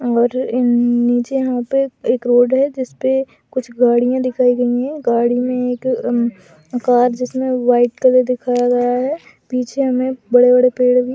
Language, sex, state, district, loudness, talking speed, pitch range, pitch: Hindi, female, Bihar, Jahanabad, -16 LUFS, 160 wpm, 245-255 Hz, 250 Hz